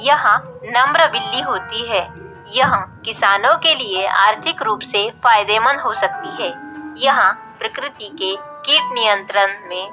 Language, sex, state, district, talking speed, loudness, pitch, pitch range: Hindi, female, Bihar, Katihar, 140 wpm, -16 LUFS, 220 Hz, 200-295 Hz